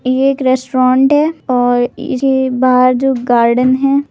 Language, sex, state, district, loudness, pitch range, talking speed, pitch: Hindi, female, Maharashtra, Aurangabad, -12 LUFS, 250-270 Hz, 175 wpm, 255 Hz